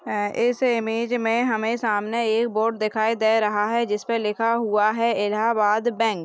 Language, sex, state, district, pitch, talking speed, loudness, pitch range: Hindi, female, Uttar Pradesh, Deoria, 225 Hz, 190 wpm, -22 LUFS, 215-230 Hz